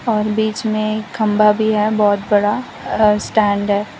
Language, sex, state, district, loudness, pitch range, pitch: Hindi, female, Gujarat, Valsad, -16 LUFS, 210-215 Hz, 215 Hz